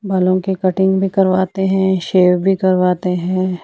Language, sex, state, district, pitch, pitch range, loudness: Hindi, female, Himachal Pradesh, Shimla, 185 Hz, 185-190 Hz, -15 LUFS